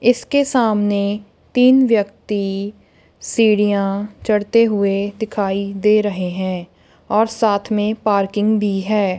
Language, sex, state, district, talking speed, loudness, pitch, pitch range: Hindi, female, Punjab, Kapurthala, 110 wpm, -17 LUFS, 210 Hz, 200-220 Hz